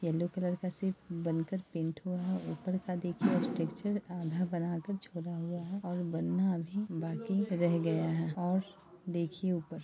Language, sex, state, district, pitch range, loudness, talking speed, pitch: Hindi, male, Bihar, East Champaran, 170-190 Hz, -35 LUFS, 165 wpm, 175 Hz